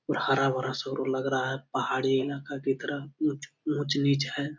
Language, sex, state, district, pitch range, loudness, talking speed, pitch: Hindi, male, Bihar, Jamui, 135-145 Hz, -29 LUFS, 170 wpm, 140 Hz